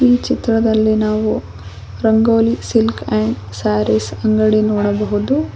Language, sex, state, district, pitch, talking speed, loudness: Kannada, female, Karnataka, Koppal, 215 Hz, 95 wpm, -16 LUFS